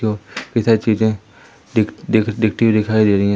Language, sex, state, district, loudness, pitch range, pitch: Hindi, female, Madhya Pradesh, Umaria, -17 LUFS, 105-110 Hz, 110 Hz